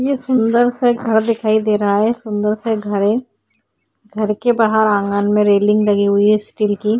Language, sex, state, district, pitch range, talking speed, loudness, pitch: Hindi, female, Maharashtra, Chandrapur, 205-225 Hz, 205 wpm, -16 LUFS, 215 Hz